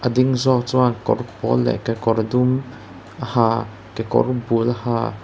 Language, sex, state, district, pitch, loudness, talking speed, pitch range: Mizo, male, Mizoram, Aizawl, 115 Hz, -20 LUFS, 185 wpm, 115-125 Hz